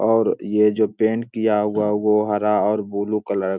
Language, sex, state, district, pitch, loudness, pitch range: Hindi, male, Bihar, Araria, 105 Hz, -20 LUFS, 105-110 Hz